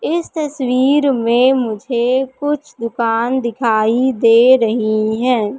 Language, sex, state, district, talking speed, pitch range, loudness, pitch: Hindi, female, Madhya Pradesh, Katni, 105 wpm, 230-265 Hz, -15 LUFS, 245 Hz